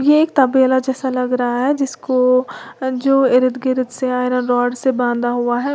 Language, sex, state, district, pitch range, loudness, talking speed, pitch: Hindi, female, Uttar Pradesh, Lalitpur, 250-265 Hz, -17 LUFS, 190 wpm, 255 Hz